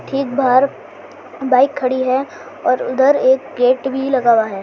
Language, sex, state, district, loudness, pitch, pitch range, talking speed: Hindi, female, Maharashtra, Chandrapur, -16 LUFS, 260 Hz, 255-270 Hz, 170 wpm